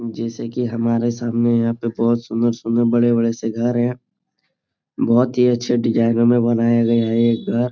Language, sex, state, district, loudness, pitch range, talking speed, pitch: Hindi, male, Bihar, Supaul, -18 LUFS, 115-120 Hz, 185 wpm, 115 Hz